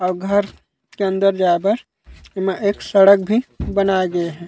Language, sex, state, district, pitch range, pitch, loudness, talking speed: Chhattisgarhi, male, Chhattisgarh, Raigarh, 180-200 Hz, 195 Hz, -18 LUFS, 160 wpm